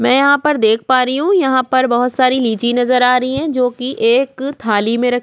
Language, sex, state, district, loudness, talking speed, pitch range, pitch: Hindi, female, Chhattisgarh, Korba, -14 LUFS, 255 wpm, 245-265 Hz, 255 Hz